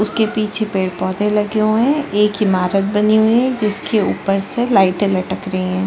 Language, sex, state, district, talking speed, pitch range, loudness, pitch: Hindi, female, Chhattisgarh, Sarguja, 205 wpm, 190-215 Hz, -16 LUFS, 210 Hz